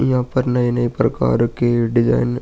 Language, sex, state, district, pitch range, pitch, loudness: Hindi, male, Uttar Pradesh, Muzaffarnagar, 115-125 Hz, 120 Hz, -18 LUFS